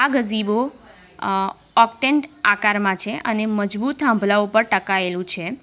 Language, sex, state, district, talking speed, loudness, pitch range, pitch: Gujarati, female, Gujarat, Valsad, 130 wpm, -20 LUFS, 195-235 Hz, 210 Hz